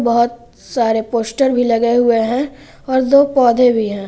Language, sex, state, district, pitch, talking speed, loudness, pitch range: Hindi, female, Jharkhand, Garhwa, 240 Hz, 175 wpm, -15 LUFS, 230-260 Hz